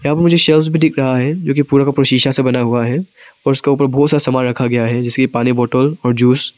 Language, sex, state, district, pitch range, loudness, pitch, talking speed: Hindi, male, Arunachal Pradesh, Papum Pare, 125-145 Hz, -14 LUFS, 135 Hz, 300 wpm